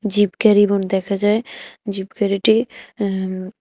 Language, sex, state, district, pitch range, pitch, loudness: Bengali, female, Tripura, West Tripura, 195-210 Hz, 205 Hz, -18 LUFS